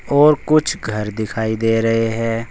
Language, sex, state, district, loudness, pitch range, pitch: Hindi, male, Uttar Pradesh, Saharanpur, -17 LUFS, 110-140 Hz, 115 Hz